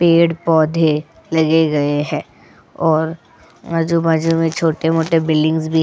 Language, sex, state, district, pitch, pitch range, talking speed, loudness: Hindi, female, Goa, North and South Goa, 160 Hz, 155-165 Hz, 115 wpm, -16 LUFS